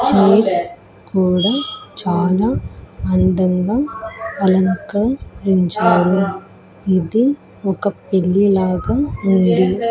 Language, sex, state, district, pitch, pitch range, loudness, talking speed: Telugu, female, Andhra Pradesh, Annamaya, 190 Hz, 180-215 Hz, -17 LUFS, 60 wpm